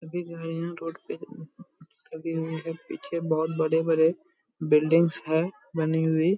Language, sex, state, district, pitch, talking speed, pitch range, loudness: Hindi, male, Bihar, Purnia, 165 Hz, 120 wpm, 160-170 Hz, -27 LUFS